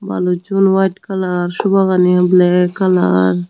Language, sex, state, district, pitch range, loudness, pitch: Chakma, female, Tripura, Unakoti, 180-190 Hz, -14 LUFS, 180 Hz